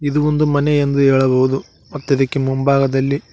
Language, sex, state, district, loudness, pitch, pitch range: Kannada, male, Karnataka, Koppal, -16 LUFS, 140 Hz, 135-145 Hz